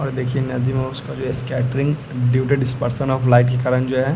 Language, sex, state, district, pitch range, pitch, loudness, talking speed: Hindi, male, Bihar, West Champaran, 125-135 Hz, 130 Hz, -19 LUFS, 85 wpm